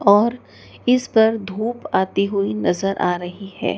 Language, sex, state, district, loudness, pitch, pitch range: Hindi, female, Madhya Pradesh, Dhar, -20 LUFS, 205 Hz, 195-230 Hz